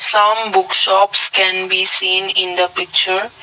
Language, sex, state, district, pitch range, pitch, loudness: English, male, Assam, Kamrup Metropolitan, 185-200 Hz, 190 Hz, -13 LUFS